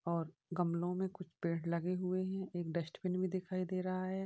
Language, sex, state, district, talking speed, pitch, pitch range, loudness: Hindi, male, Uttar Pradesh, Varanasi, 210 wpm, 180 Hz, 170-185 Hz, -39 LUFS